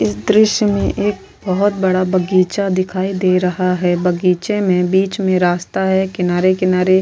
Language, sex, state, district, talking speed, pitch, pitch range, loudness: Hindi, female, Maharashtra, Chandrapur, 170 wpm, 185 Hz, 180-195 Hz, -16 LUFS